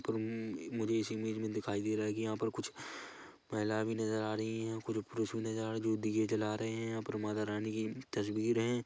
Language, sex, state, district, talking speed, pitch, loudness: Hindi, male, Chhattisgarh, Kabirdham, 230 wpm, 110 Hz, -37 LUFS